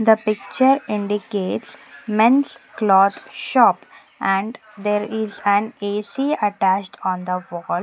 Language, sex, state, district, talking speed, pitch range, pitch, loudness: English, female, Punjab, Pathankot, 115 wpm, 195-220 Hz, 210 Hz, -20 LUFS